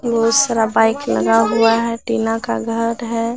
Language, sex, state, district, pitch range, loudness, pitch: Hindi, female, Bihar, Katihar, 225-230 Hz, -16 LUFS, 230 Hz